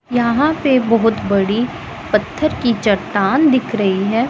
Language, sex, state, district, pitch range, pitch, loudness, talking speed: Hindi, female, Punjab, Pathankot, 205-260 Hz, 230 Hz, -16 LUFS, 140 wpm